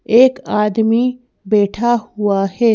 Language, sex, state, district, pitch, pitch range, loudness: Hindi, female, Madhya Pradesh, Bhopal, 225 Hz, 210-240 Hz, -15 LUFS